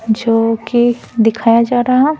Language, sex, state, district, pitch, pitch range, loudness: Hindi, female, Bihar, Patna, 230 Hz, 225-245 Hz, -13 LUFS